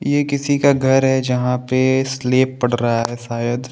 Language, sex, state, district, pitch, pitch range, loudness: Hindi, male, Maharashtra, Chandrapur, 130 Hz, 120-135 Hz, -17 LUFS